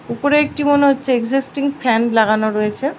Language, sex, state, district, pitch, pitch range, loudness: Bengali, female, West Bengal, Paschim Medinipur, 270 Hz, 230-280 Hz, -16 LUFS